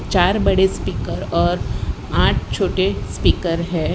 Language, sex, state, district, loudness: Hindi, female, Gujarat, Valsad, -19 LUFS